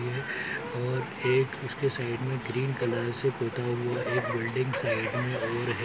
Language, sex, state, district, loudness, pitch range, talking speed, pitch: Hindi, male, Bihar, Saran, -30 LUFS, 120-130 Hz, 165 wpm, 125 Hz